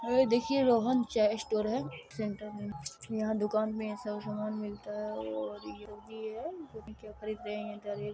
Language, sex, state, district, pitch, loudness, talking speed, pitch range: Maithili, female, Bihar, Supaul, 215 Hz, -34 LUFS, 110 wpm, 210-220 Hz